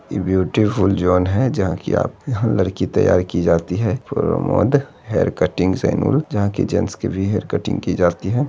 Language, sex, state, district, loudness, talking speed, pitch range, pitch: Hindi, male, Bihar, Begusarai, -19 LUFS, 190 wpm, 90-110 Hz, 95 Hz